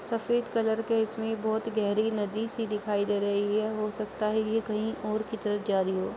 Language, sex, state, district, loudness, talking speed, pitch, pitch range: Hindi, female, Uttar Pradesh, Muzaffarnagar, -29 LUFS, 245 wpm, 215 Hz, 210-225 Hz